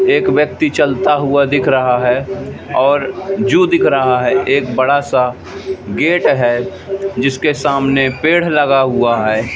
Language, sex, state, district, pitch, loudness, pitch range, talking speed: Hindi, male, Madhya Pradesh, Katni, 140 Hz, -13 LUFS, 130-190 Hz, 140 wpm